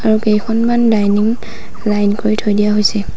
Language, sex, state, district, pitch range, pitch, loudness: Assamese, female, Assam, Sonitpur, 210-225 Hz, 215 Hz, -14 LUFS